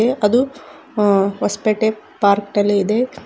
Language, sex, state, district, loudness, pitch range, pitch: Kannada, female, Karnataka, Koppal, -17 LUFS, 205-245 Hz, 215 Hz